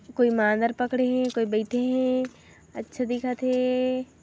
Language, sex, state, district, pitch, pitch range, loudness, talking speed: Hindi, female, Chhattisgarh, Kabirdham, 250 Hz, 240-255 Hz, -25 LUFS, 140 wpm